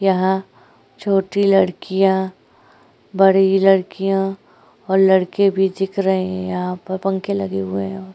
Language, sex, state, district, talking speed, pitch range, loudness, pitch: Hindi, female, Uttar Pradesh, Jyotiba Phule Nagar, 125 wpm, 185-195 Hz, -18 LUFS, 190 Hz